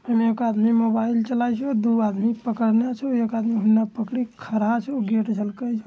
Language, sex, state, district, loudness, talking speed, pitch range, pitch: Angika, male, Bihar, Bhagalpur, -22 LUFS, 215 wpm, 220-240 Hz, 230 Hz